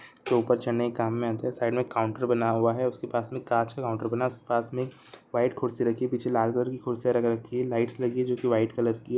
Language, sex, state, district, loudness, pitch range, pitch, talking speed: Hindi, male, Jharkhand, Sahebganj, -28 LUFS, 115-125 Hz, 120 Hz, 305 wpm